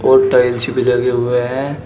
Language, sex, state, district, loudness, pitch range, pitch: Hindi, male, Uttar Pradesh, Shamli, -14 LUFS, 125-130 Hz, 125 Hz